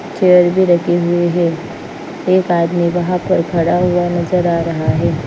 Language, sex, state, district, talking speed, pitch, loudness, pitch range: Hindi, female, Bihar, Patna, 170 wpm, 175 Hz, -14 LUFS, 170-180 Hz